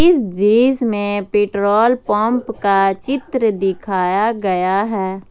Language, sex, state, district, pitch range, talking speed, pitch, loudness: Hindi, female, Jharkhand, Ranchi, 195-230 Hz, 115 wpm, 205 Hz, -16 LUFS